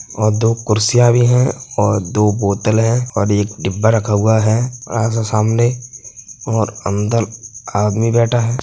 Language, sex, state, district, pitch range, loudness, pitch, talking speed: Hindi, male, Uttar Pradesh, Hamirpur, 105-120 Hz, -15 LUFS, 115 Hz, 155 wpm